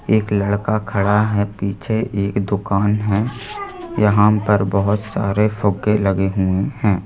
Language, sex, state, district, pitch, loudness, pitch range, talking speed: Hindi, male, Madhya Pradesh, Bhopal, 105 Hz, -18 LUFS, 100-105 Hz, 135 wpm